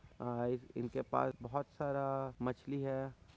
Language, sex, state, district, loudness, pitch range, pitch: Hindi, male, Chhattisgarh, Kabirdham, -40 LUFS, 120-135 Hz, 130 Hz